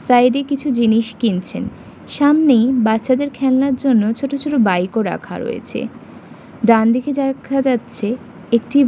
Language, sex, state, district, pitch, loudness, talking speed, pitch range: Bengali, female, West Bengal, Kolkata, 245 Hz, -17 LUFS, 130 wpm, 230-270 Hz